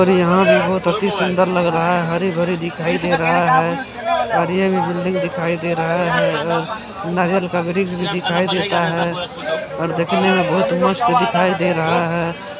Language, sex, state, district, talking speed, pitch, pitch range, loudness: Hindi, male, Bihar, Araria, 110 wpm, 180 Hz, 170-190 Hz, -17 LUFS